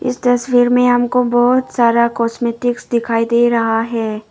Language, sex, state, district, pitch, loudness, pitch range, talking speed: Hindi, female, Arunachal Pradesh, Papum Pare, 240 Hz, -15 LUFS, 230-245 Hz, 155 wpm